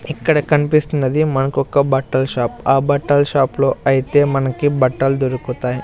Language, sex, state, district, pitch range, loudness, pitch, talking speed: Telugu, male, Andhra Pradesh, Sri Satya Sai, 130-145 Hz, -16 LUFS, 135 Hz, 145 wpm